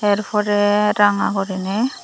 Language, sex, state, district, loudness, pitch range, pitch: Chakma, female, Tripura, Dhalai, -18 LUFS, 200-210 Hz, 205 Hz